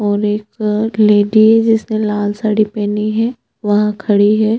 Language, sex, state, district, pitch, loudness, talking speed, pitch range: Hindi, female, Chhattisgarh, Bastar, 215 Hz, -14 LUFS, 155 wpm, 210-220 Hz